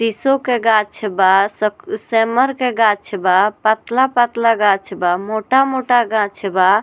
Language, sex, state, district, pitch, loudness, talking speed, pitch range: Bhojpuri, female, Bihar, Muzaffarpur, 220 Hz, -16 LUFS, 130 wpm, 200-245 Hz